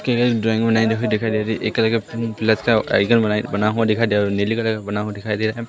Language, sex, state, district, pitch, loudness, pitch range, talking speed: Hindi, male, Madhya Pradesh, Katni, 110 Hz, -19 LUFS, 105-115 Hz, 315 wpm